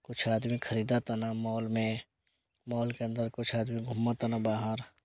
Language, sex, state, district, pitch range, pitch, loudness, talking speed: Bhojpuri, male, Bihar, Gopalganj, 110-120 Hz, 115 Hz, -33 LUFS, 165 wpm